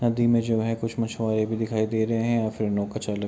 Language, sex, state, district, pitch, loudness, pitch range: Hindi, male, Bihar, Kishanganj, 110 Hz, -25 LUFS, 110-115 Hz